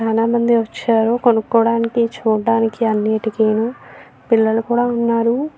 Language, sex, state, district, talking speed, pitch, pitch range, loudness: Telugu, female, Andhra Pradesh, Visakhapatnam, 85 wpm, 230 Hz, 225-235 Hz, -17 LUFS